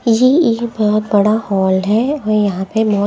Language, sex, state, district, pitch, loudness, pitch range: Hindi, female, Punjab, Kapurthala, 215 Hz, -14 LUFS, 205-230 Hz